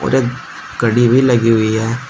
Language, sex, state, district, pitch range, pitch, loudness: Hindi, male, Uttar Pradesh, Shamli, 115-130 Hz, 120 Hz, -14 LUFS